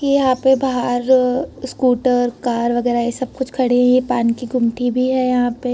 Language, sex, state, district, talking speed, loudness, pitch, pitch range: Hindi, female, Uttar Pradesh, Etah, 210 wpm, -17 LUFS, 250 Hz, 245-260 Hz